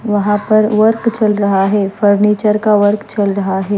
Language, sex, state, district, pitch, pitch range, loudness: Hindi, female, Maharashtra, Mumbai Suburban, 205 Hz, 200-215 Hz, -13 LUFS